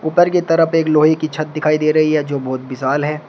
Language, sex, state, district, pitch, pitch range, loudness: Hindi, male, Uttar Pradesh, Shamli, 155 Hz, 145-160 Hz, -16 LUFS